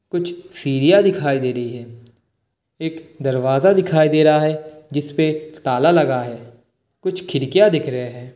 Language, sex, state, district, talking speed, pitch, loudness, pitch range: Hindi, male, Bihar, Kishanganj, 160 wpm, 145 Hz, -18 LUFS, 125-160 Hz